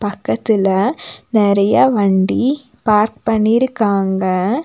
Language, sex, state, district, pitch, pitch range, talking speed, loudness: Tamil, female, Tamil Nadu, Nilgiris, 215 Hz, 195-245 Hz, 65 wpm, -15 LUFS